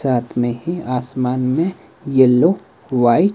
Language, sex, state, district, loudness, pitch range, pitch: Hindi, male, Himachal Pradesh, Shimla, -18 LUFS, 125-170 Hz, 130 Hz